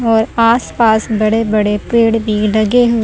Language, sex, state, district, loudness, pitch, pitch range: Hindi, female, Chandigarh, Chandigarh, -13 LUFS, 225 Hz, 215-230 Hz